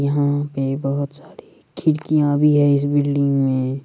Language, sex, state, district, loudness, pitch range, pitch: Hindi, male, Bihar, Madhepura, -19 LUFS, 140-145 Hz, 145 Hz